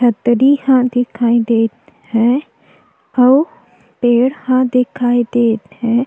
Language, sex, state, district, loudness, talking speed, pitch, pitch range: Chhattisgarhi, female, Chhattisgarh, Jashpur, -14 LUFS, 110 wpm, 245 Hz, 235-255 Hz